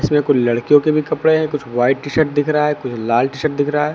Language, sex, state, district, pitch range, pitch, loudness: Hindi, male, Uttar Pradesh, Lucknow, 130-150 Hz, 145 Hz, -16 LUFS